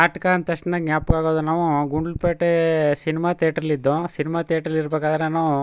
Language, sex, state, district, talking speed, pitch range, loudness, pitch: Kannada, male, Karnataka, Chamarajanagar, 105 wpm, 155-170 Hz, -21 LUFS, 160 Hz